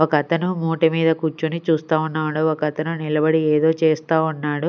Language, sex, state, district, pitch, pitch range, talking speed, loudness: Telugu, female, Andhra Pradesh, Sri Satya Sai, 160 Hz, 155-165 Hz, 165 wpm, -20 LUFS